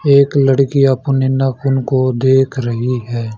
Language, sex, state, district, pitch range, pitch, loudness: Hindi, male, Haryana, Charkhi Dadri, 125-135 Hz, 130 Hz, -14 LUFS